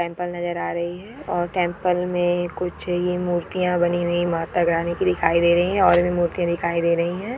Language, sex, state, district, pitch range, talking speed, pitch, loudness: Hindi, female, West Bengal, Purulia, 170-180 Hz, 205 wpm, 175 Hz, -22 LUFS